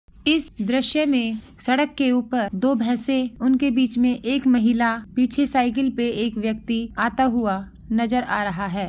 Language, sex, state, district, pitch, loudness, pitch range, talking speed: Hindi, female, Bihar, Saharsa, 245 Hz, -22 LUFS, 230-260 Hz, 160 wpm